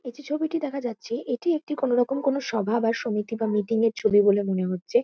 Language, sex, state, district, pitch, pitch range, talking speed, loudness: Bengali, female, West Bengal, Kolkata, 235 Hz, 215-275 Hz, 225 wpm, -25 LUFS